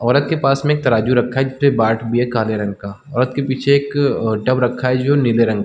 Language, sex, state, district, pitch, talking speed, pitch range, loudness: Hindi, male, Chhattisgarh, Balrampur, 125 Hz, 285 wpm, 115-140 Hz, -17 LUFS